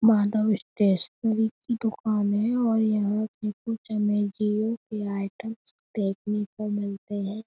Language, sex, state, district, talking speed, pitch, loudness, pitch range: Hindi, female, Uttar Pradesh, Budaun, 135 wpm, 215 Hz, -27 LUFS, 205-220 Hz